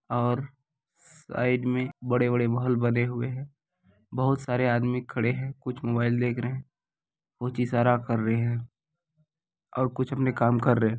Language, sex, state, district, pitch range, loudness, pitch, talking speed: Maithili, male, Bihar, Supaul, 120-130 Hz, -27 LUFS, 125 Hz, 165 wpm